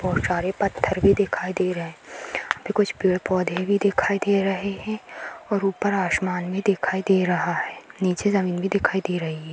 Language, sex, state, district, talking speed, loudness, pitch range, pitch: Hindi, female, Uttar Pradesh, Hamirpur, 195 wpm, -23 LUFS, 180-200 Hz, 190 Hz